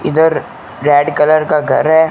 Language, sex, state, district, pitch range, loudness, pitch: Hindi, male, Rajasthan, Bikaner, 145-160 Hz, -12 LUFS, 150 Hz